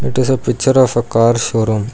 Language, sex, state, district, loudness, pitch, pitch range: English, male, Karnataka, Bangalore, -14 LUFS, 115 Hz, 110-130 Hz